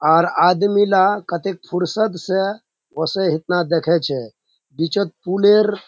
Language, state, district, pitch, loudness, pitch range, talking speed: Surjapuri, Bihar, Kishanganj, 180 Hz, -18 LUFS, 170-200 Hz, 110 wpm